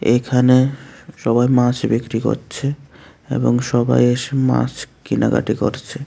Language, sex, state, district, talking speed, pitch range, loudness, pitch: Bengali, male, Tripura, West Tripura, 110 wpm, 120-130 Hz, -18 LUFS, 125 Hz